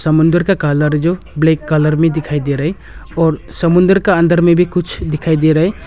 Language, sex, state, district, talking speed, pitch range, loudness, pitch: Hindi, male, Arunachal Pradesh, Longding, 225 wpm, 155-175 Hz, -13 LUFS, 160 Hz